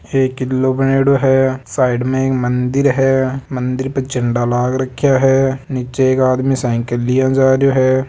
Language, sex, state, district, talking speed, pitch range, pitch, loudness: Marwari, male, Rajasthan, Nagaur, 170 wpm, 130-135 Hz, 130 Hz, -15 LUFS